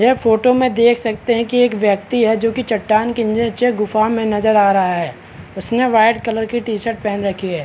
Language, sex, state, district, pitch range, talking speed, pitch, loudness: Hindi, male, Chhattisgarh, Balrampur, 210-235 Hz, 205 wpm, 225 Hz, -16 LUFS